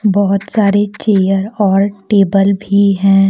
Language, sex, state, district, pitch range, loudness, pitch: Hindi, female, Jharkhand, Deoghar, 195-205 Hz, -12 LUFS, 200 Hz